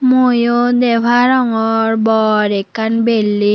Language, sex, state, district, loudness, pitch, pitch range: Chakma, female, Tripura, Unakoti, -13 LUFS, 230 Hz, 220-245 Hz